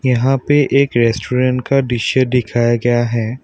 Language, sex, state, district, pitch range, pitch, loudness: Hindi, male, Assam, Kamrup Metropolitan, 120-135 Hz, 125 Hz, -15 LUFS